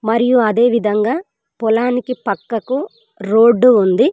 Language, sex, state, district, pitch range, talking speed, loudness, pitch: Telugu, female, Telangana, Mahabubabad, 215-250 Hz, 85 wpm, -15 LUFS, 235 Hz